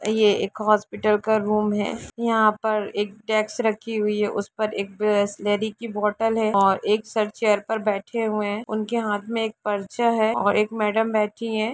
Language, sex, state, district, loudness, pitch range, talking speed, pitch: Hindi, female, Jharkhand, Sahebganj, -23 LUFS, 210-220 Hz, 200 wpm, 215 Hz